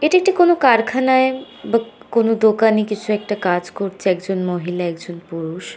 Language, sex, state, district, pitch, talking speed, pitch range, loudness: Bengali, female, West Bengal, North 24 Parganas, 215 Hz, 155 wpm, 180-245 Hz, -18 LUFS